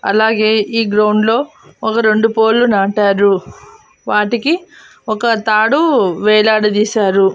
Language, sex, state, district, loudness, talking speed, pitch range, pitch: Telugu, female, Andhra Pradesh, Annamaya, -13 LUFS, 90 wpm, 210-230 Hz, 220 Hz